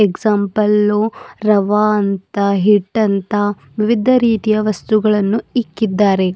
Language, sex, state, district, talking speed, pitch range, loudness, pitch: Kannada, female, Karnataka, Bidar, 75 wpm, 200-215 Hz, -15 LUFS, 210 Hz